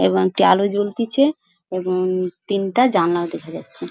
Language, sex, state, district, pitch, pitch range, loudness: Bengali, female, West Bengal, Paschim Medinipur, 185 Hz, 175-210 Hz, -19 LUFS